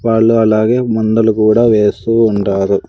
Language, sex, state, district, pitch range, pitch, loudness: Telugu, male, Andhra Pradesh, Sri Satya Sai, 110-115 Hz, 110 Hz, -12 LUFS